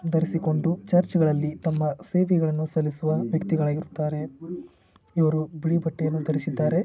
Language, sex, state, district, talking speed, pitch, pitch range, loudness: Kannada, male, Karnataka, Shimoga, 90 wpm, 155 Hz, 155-170 Hz, -25 LUFS